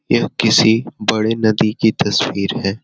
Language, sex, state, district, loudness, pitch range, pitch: Hindi, male, Bihar, Jamui, -16 LUFS, 100-110 Hz, 110 Hz